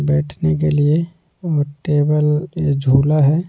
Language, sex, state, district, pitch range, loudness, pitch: Hindi, male, Delhi, New Delhi, 135-160 Hz, -17 LUFS, 150 Hz